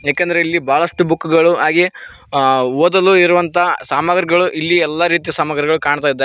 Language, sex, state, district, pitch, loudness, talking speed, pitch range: Kannada, male, Karnataka, Koppal, 170 Hz, -14 LUFS, 135 wpm, 145-175 Hz